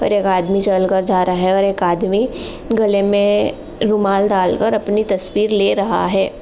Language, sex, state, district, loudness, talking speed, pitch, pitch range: Hindi, female, Uttar Pradesh, Jalaun, -16 LUFS, 185 wpm, 200 Hz, 190-210 Hz